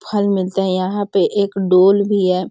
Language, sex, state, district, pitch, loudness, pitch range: Hindi, female, Bihar, Sitamarhi, 195 Hz, -16 LUFS, 185-205 Hz